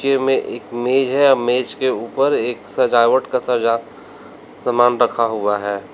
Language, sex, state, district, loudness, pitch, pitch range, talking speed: Hindi, male, Uttar Pradesh, Lalitpur, -17 LUFS, 120 Hz, 115-135 Hz, 160 wpm